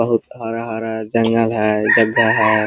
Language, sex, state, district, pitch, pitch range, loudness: Hindi, male, Jharkhand, Sahebganj, 115 Hz, 110-115 Hz, -16 LUFS